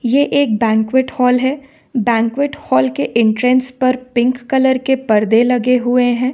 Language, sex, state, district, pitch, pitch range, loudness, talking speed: Hindi, female, Jharkhand, Ranchi, 250 Hz, 230-260 Hz, -15 LUFS, 160 wpm